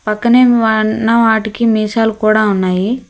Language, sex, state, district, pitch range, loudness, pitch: Telugu, female, Telangana, Hyderabad, 215-230 Hz, -12 LUFS, 220 Hz